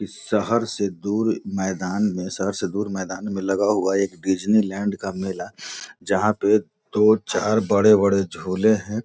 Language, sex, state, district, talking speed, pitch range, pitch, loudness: Hindi, male, Bihar, Gopalganj, 170 wpm, 95-105 Hz, 100 Hz, -22 LUFS